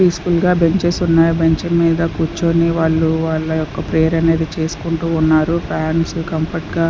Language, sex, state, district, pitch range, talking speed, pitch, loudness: Telugu, female, Andhra Pradesh, Sri Satya Sai, 160-170 Hz, 175 wpm, 165 Hz, -16 LUFS